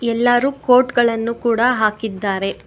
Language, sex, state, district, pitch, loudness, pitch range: Kannada, female, Karnataka, Bangalore, 235 Hz, -17 LUFS, 220-245 Hz